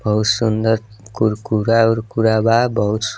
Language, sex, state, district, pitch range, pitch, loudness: Bhojpuri, male, Bihar, East Champaran, 110-115 Hz, 110 Hz, -17 LUFS